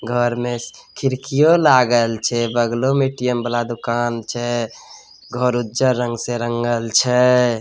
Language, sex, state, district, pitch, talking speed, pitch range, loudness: Maithili, male, Bihar, Samastipur, 120 Hz, 135 wpm, 120-125 Hz, -18 LUFS